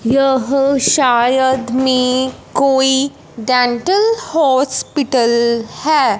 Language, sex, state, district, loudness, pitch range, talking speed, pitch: Hindi, male, Punjab, Fazilka, -14 LUFS, 250-275 Hz, 70 wpm, 260 Hz